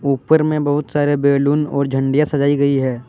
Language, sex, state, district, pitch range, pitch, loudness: Hindi, male, Jharkhand, Deoghar, 140-150 Hz, 140 Hz, -16 LUFS